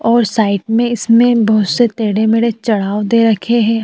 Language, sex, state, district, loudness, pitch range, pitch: Hindi, female, Uttar Pradesh, Jyotiba Phule Nagar, -13 LUFS, 215-235 Hz, 225 Hz